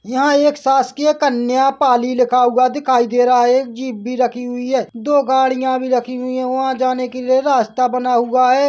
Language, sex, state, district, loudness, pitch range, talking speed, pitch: Hindi, male, Chhattisgarh, Bilaspur, -16 LUFS, 250-265 Hz, 215 wpm, 255 Hz